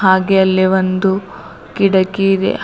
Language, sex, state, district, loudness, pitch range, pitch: Kannada, female, Karnataka, Bidar, -14 LUFS, 190-195 Hz, 190 Hz